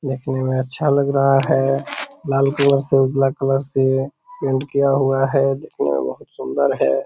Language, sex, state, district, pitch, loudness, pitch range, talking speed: Hindi, male, Bihar, Purnia, 135 Hz, -18 LUFS, 135-140 Hz, 195 wpm